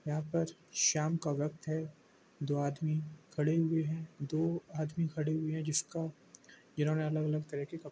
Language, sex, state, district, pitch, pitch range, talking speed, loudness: Hindi, male, Bihar, Gopalganj, 155 Hz, 150-160 Hz, 175 wpm, -35 LUFS